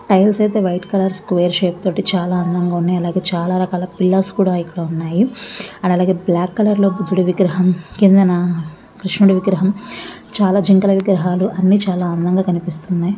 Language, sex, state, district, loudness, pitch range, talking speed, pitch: Telugu, female, Andhra Pradesh, Visakhapatnam, -16 LUFS, 180-195 Hz, 165 wpm, 185 Hz